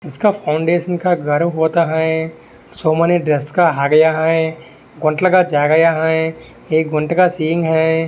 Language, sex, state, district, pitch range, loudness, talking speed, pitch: Hindi, male, Maharashtra, Sindhudurg, 155-170 Hz, -15 LUFS, 80 wpm, 160 Hz